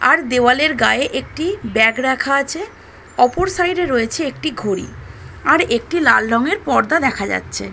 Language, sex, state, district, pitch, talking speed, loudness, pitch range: Bengali, female, West Bengal, Kolkata, 265 Hz, 165 wpm, -16 LUFS, 230-330 Hz